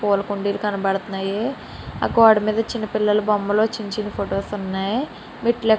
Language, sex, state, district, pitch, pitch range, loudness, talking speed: Telugu, female, Andhra Pradesh, Srikakulam, 210 Hz, 200-220 Hz, -21 LUFS, 135 wpm